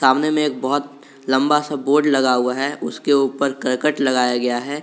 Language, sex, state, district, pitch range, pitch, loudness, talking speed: Hindi, male, Jharkhand, Garhwa, 130-145 Hz, 135 Hz, -19 LUFS, 200 wpm